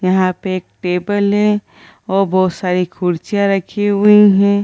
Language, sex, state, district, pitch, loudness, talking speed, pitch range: Hindi, female, Bihar, Gaya, 195 Hz, -15 LUFS, 170 wpm, 185-205 Hz